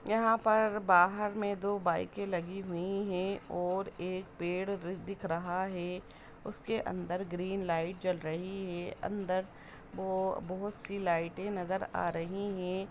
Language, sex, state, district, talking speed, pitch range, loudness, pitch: Hindi, female, Bihar, East Champaran, 150 wpm, 180-200 Hz, -34 LUFS, 185 Hz